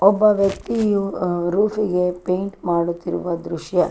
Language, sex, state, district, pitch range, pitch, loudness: Kannada, female, Karnataka, Chamarajanagar, 175-200 Hz, 180 Hz, -21 LUFS